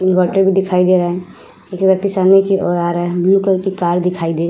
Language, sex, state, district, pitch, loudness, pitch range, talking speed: Hindi, female, Uttar Pradesh, Budaun, 185 Hz, -14 LUFS, 175-190 Hz, 295 wpm